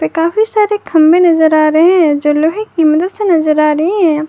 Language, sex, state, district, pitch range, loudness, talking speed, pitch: Hindi, female, Jharkhand, Garhwa, 310-360 Hz, -11 LUFS, 240 wpm, 325 Hz